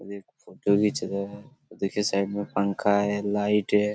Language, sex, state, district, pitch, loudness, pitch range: Hindi, male, Chhattisgarh, Korba, 100 Hz, -26 LUFS, 100-105 Hz